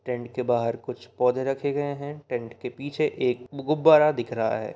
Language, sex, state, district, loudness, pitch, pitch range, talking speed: Hindi, male, Bihar, Begusarai, -25 LUFS, 130 Hz, 120-145 Hz, 200 wpm